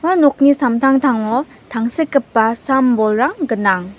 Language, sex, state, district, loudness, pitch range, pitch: Garo, female, Meghalaya, West Garo Hills, -15 LUFS, 225-280 Hz, 255 Hz